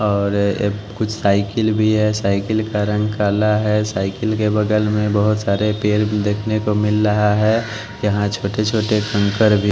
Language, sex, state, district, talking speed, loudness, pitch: Hindi, male, Bihar, West Champaran, 160 wpm, -18 LUFS, 105 Hz